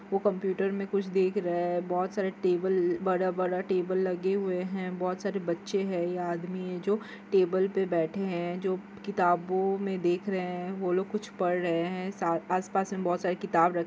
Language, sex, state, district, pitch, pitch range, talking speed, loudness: Hindi, female, Chhattisgarh, Korba, 185 Hz, 180-195 Hz, 200 wpm, -30 LUFS